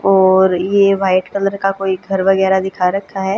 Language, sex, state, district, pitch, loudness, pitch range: Hindi, female, Haryana, Jhajjar, 195 Hz, -14 LUFS, 190-195 Hz